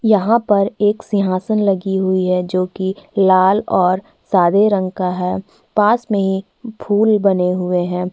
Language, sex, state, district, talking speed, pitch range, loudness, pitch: Hindi, female, Chhattisgarh, Korba, 155 wpm, 185-210 Hz, -16 LUFS, 190 Hz